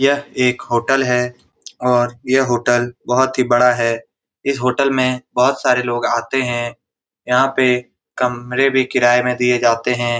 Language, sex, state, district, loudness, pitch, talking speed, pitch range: Hindi, male, Bihar, Saran, -17 LUFS, 125 Hz, 160 wpm, 120-130 Hz